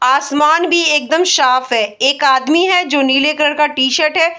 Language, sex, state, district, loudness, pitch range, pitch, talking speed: Hindi, female, Bihar, Bhagalpur, -12 LUFS, 265-320 Hz, 295 Hz, 190 wpm